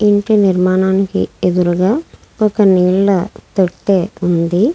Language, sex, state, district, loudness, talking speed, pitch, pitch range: Telugu, female, Andhra Pradesh, Krishna, -14 LUFS, 90 wpm, 190 Hz, 180-205 Hz